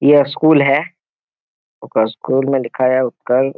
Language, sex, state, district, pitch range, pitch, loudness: Hindi, male, Bihar, Jamui, 130-140 Hz, 135 Hz, -15 LUFS